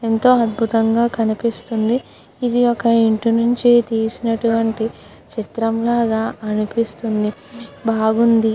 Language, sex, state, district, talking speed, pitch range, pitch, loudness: Telugu, female, Andhra Pradesh, Krishna, 85 wpm, 220-235 Hz, 230 Hz, -18 LUFS